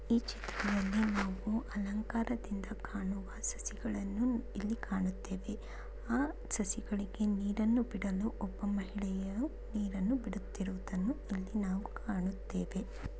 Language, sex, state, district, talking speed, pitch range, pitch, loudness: Kannada, female, Karnataka, Bellary, 85 wpm, 195-225 Hz, 205 Hz, -37 LUFS